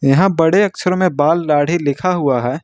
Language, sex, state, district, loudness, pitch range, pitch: Hindi, male, Jharkhand, Ranchi, -15 LUFS, 140-185 Hz, 165 Hz